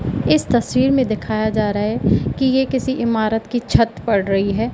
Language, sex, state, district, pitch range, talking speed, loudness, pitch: Hindi, female, Madhya Pradesh, Katni, 210-250 Hz, 205 wpm, -18 LUFS, 225 Hz